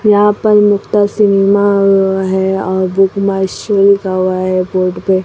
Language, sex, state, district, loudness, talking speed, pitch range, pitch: Hindi, female, Maharashtra, Mumbai Suburban, -12 LUFS, 170 wpm, 190-205 Hz, 195 Hz